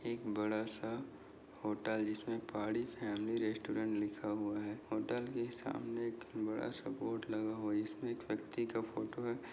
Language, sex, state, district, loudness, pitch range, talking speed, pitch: Hindi, male, Goa, North and South Goa, -40 LUFS, 105-115 Hz, 155 wpm, 110 Hz